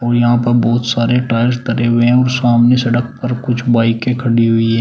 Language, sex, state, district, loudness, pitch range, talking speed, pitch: Hindi, male, Uttar Pradesh, Shamli, -13 LUFS, 115-125 Hz, 210 wpm, 120 Hz